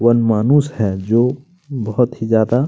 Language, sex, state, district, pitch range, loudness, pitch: Hindi, male, Chhattisgarh, Kabirdham, 110-135 Hz, -16 LUFS, 120 Hz